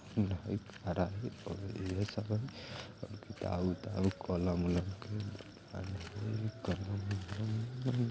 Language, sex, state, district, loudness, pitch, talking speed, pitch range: Bajjika, male, Bihar, Vaishali, -39 LUFS, 100 Hz, 60 wpm, 95-110 Hz